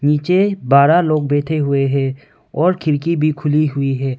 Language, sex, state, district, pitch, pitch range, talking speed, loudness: Hindi, male, Arunachal Pradesh, Longding, 150 Hz, 140-165 Hz, 170 wpm, -16 LUFS